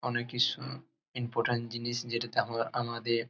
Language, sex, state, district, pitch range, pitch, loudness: Bengali, male, West Bengal, Jalpaiguri, 115-120 Hz, 120 Hz, -33 LUFS